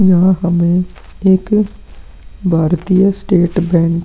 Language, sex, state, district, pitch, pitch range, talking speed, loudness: Hindi, male, Chhattisgarh, Korba, 180 Hz, 165-190 Hz, 105 wpm, -14 LUFS